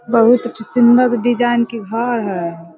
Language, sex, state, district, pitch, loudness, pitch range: Hindi, female, Bihar, Sitamarhi, 235 Hz, -15 LUFS, 220-240 Hz